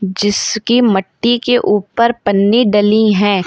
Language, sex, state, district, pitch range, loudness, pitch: Hindi, female, Uttar Pradesh, Lalitpur, 200-235 Hz, -13 LUFS, 210 Hz